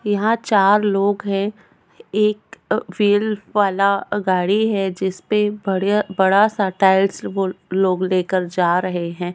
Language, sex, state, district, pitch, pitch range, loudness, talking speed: Hindi, female, Goa, North and South Goa, 195 Hz, 185-210 Hz, -19 LUFS, 140 wpm